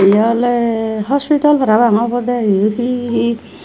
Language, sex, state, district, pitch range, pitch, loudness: Chakma, female, Tripura, Unakoti, 220-245 Hz, 235 Hz, -14 LUFS